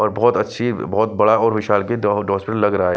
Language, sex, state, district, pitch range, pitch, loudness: Hindi, male, Punjab, Fazilka, 105-115 Hz, 110 Hz, -18 LUFS